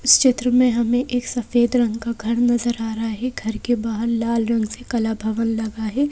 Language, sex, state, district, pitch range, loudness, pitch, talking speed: Hindi, female, Madhya Pradesh, Bhopal, 225-245 Hz, -20 LUFS, 235 Hz, 205 wpm